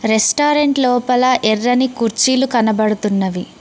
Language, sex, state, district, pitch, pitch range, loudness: Telugu, female, Telangana, Mahabubabad, 240 Hz, 215-260 Hz, -15 LUFS